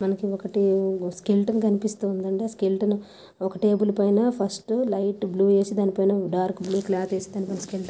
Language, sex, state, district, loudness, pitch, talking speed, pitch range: Telugu, female, Andhra Pradesh, Anantapur, -24 LUFS, 200 Hz, 160 wpm, 190-205 Hz